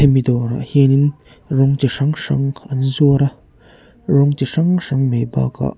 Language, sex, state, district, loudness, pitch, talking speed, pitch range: Mizo, male, Mizoram, Aizawl, -16 LUFS, 135 Hz, 165 wpm, 130-145 Hz